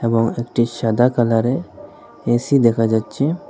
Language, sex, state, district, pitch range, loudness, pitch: Bengali, male, Assam, Hailakandi, 115-125 Hz, -18 LUFS, 120 Hz